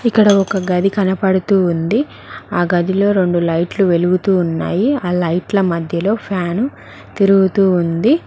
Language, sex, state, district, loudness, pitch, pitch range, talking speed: Telugu, female, Telangana, Mahabubabad, -15 LUFS, 190 Hz, 175-200 Hz, 125 wpm